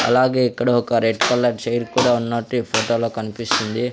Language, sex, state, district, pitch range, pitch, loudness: Telugu, male, Andhra Pradesh, Sri Satya Sai, 115-125 Hz, 120 Hz, -19 LUFS